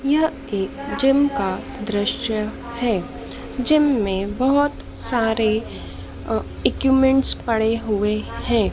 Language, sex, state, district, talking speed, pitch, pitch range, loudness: Hindi, female, Madhya Pradesh, Dhar, 105 wpm, 225 Hz, 205-270 Hz, -21 LUFS